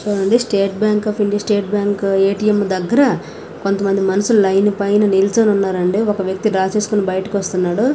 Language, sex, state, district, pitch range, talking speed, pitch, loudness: Telugu, female, Karnataka, Bellary, 195-210 Hz, 175 wpm, 200 Hz, -16 LUFS